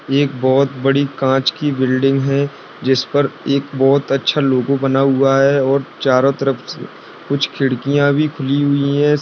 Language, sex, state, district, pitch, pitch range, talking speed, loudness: Hindi, male, Bihar, Darbhanga, 135 Hz, 135-140 Hz, 170 wpm, -16 LUFS